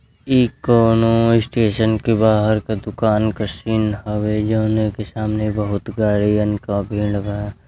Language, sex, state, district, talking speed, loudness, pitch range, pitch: Bhojpuri, male, Uttar Pradesh, Deoria, 140 wpm, -18 LUFS, 105-110 Hz, 110 Hz